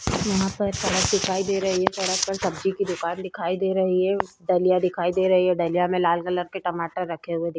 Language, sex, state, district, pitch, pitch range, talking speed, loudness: Hindi, female, Uttarakhand, Tehri Garhwal, 185 Hz, 175-190 Hz, 245 wpm, -23 LUFS